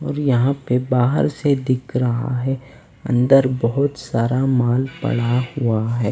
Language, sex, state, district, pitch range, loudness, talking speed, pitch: Hindi, male, Delhi, New Delhi, 120-135 Hz, -19 LUFS, 135 wpm, 125 Hz